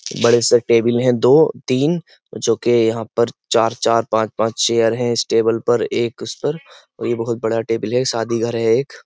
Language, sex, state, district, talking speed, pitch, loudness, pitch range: Hindi, male, Uttar Pradesh, Jyotiba Phule Nagar, 210 wpm, 115 Hz, -17 LUFS, 115-120 Hz